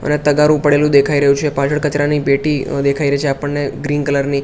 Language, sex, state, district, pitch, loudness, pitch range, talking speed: Gujarati, male, Gujarat, Gandhinagar, 145 Hz, -15 LUFS, 140-150 Hz, 215 wpm